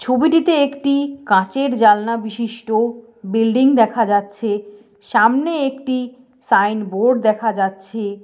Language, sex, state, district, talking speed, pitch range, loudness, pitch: Bengali, female, West Bengal, Paschim Medinipur, 100 wpm, 210-260 Hz, -17 LUFS, 230 Hz